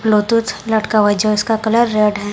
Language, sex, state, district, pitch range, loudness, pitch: Hindi, female, Chhattisgarh, Raipur, 210-225 Hz, -15 LUFS, 215 Hz